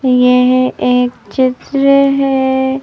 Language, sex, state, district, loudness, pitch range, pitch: Hindi, female, Madhya Pradesh, Bhopal, -12 LUFS, 250-270 Hz, 260 Hz